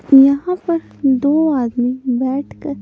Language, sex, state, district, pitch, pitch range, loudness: Hindi, female, Punjab, Pathankot, 275 Hz, 260-305 Hz, -16 LUFS